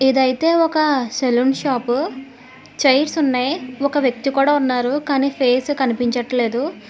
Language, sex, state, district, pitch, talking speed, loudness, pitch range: Telugu, female, Telangana, Hyderabad, 265 Hz, 115 wpm, -18 LUFS, 250-285 Hz